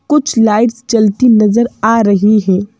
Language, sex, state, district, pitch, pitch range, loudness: Hindi, female, Madhya Pradesh, Bhopal, 225 Hz, 210-235 Hz, -11 LUFS